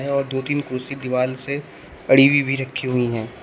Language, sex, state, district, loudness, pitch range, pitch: Hindi, male, Uttar Pradesh, Shamli, -20 LUFS, 130-140 Hz, 135 Hz